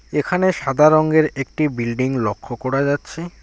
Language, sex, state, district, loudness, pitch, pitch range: Bengali, male, West Bengal, Alipurduar, -19 LUFS, 145 Hz, 130-155 Hz